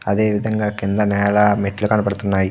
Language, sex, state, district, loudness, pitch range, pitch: Telugu, male, Andhra Pradesh, Krishna, -18 LUFS, 100-105 Hz, 105 Hz